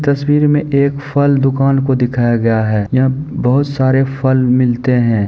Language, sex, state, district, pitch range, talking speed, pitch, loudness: Maithili, male, Bihar, Supaul, 125-140 Hz, 180 wpm, 130 Hz, -14 LUFS